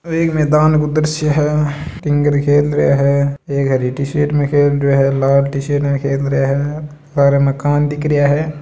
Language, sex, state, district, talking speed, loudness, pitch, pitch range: Marwari, male, Rajasthan, Nagaur, 175 wpm, -15 LUFS, 145 Hz, 140-150 Hz